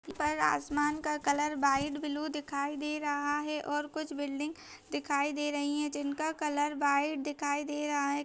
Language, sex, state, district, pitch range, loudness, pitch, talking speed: Hindi, female, Bihar, Jahanabad, 285-300 Hz, -33 LUFS, 295 Hz, 175 wpm